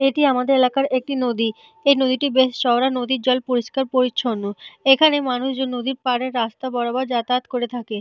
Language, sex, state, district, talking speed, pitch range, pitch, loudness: Bengali, female, Jharkhand, Jamtara, 165 wpm, 245-265 Hz, 255 Hz, -20 LUFS